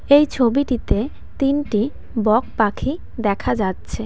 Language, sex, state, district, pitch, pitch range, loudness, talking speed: Bengali, female, West Bengal, Cooch Behar, 235 Hz, 215-275 Hz, -20 LUFS, 105 wpm